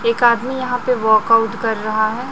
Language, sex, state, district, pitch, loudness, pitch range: Hindi, male, Chhattisgarh, Raipur, 230 Hz, -16 LUFS, 220-245 Hz